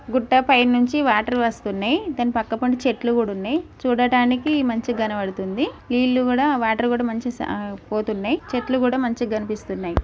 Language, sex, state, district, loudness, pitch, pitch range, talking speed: Telugu, female, Telangana, Nalgonda, -21 LUFS, 245 Hz, 220-255 Hz, 145 wpm